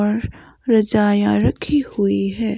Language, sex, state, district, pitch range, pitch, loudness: Hindi, female, Himachal Pradesh, Shimla, 200-225 Hz, 210 Hz, -17 LUFS